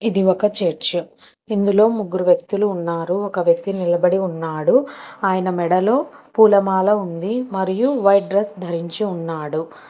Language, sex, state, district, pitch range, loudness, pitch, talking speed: Telugu, female, Telangana, Hyderabad, 175-210 Hz, -19 LUFS, 190 Hz, 120 wpm